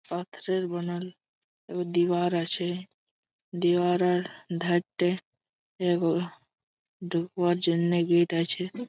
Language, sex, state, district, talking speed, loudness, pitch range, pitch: Bengali, male, West Bengal, Malda, 80 wpm, -28 LUFS, 175-180 Hz, 175 Hz